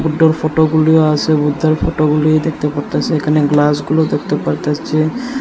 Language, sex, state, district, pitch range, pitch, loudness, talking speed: Bengali, male, Tripura, Unakoti, 150-160 Hz, 155 Hz, -14 LUFS, 120 wpm